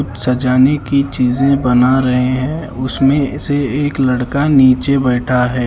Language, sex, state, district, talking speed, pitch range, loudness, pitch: Hindi, male, Haryana, Charkhi Dadri, 140 wpm, 125-140 Hz, -14 LUFS, 130 Hz